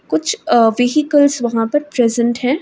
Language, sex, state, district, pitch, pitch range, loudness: Hindi, female, Uttar Pradesh, Varanasi, 250 Hz, 235-295 Hz, -15 LUFS